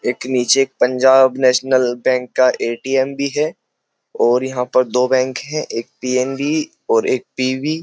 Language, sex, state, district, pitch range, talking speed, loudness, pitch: Hindi, male, Uttar Pradesh, Jyotiba Phule Nagar, 125-140 Hz, 170 wpm, -17 LUFS, 130 Hz